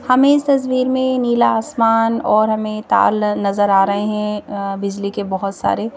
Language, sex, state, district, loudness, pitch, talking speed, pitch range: Hindi, female, Madhya Pradesh, Bhopal, -17 LUFS, 215 Hz, 170 wpm, 200-250 Hz